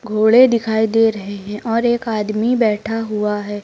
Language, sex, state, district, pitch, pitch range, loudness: Hindi, male, Uttar Pradesh, Lucknow, 220 Hz, 210-230 Hz, -17 LUFS